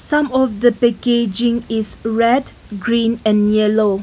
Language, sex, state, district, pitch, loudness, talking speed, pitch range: English, female, Nagaland, Kohima, 230 Hz, -16 LUFS, 135 wpm, 215-240 Hz